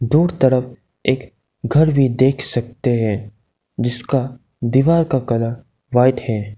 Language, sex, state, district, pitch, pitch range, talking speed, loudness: Hindi, male, Arunachal Pradesh, Lower Dibang Valley, 125 Hz, 115-135 Hz, 125 wpm, -18 LUFS